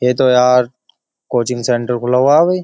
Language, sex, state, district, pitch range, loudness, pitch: Hindi, male, Uttar Pradesh, Jyotiba Phule Nagar, 120-130 Hz, -14 LUFS, 125 Hz